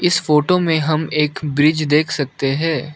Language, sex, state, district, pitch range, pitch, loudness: Hindi, male, Arunachal Pradesh, Lower Dibang Valley, 150-160 Hz, 155 Hz, -17 LUFS